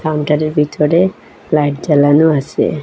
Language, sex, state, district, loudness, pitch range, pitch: Bengali, female, Assam, Hailakandi, -14 LUFS, 145-155 Hz, 150 Hz